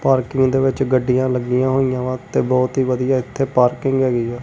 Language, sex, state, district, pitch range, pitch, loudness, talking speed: Punjabi, male, Punjab, Kapurthala, 125-135 Hz, 130 Hz, -18 LUFS, 190 wpm